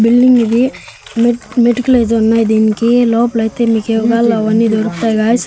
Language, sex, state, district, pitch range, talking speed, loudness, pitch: Telugu, male, Andhra Pradesh, Annamaya, 220-240 Hz, 155 wpm, -12 LUFS, 230 Hz